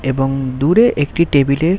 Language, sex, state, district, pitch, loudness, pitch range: Bengali, male, West Bengal, Kolkata, 140 Hz, -15 LUFS, 135-170 Hz